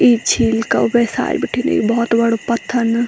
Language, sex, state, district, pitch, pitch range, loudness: Garhwali, female, Uttarakhand, Tehri Garhwal, 235 Hz, 230-240 Hz, -16 LUFS